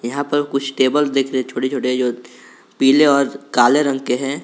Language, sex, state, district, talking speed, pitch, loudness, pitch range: Hindi, male, Jharkhand, Garhwa, 215 wpm, 135 Hz, -17 LUFS, 125-140 Hz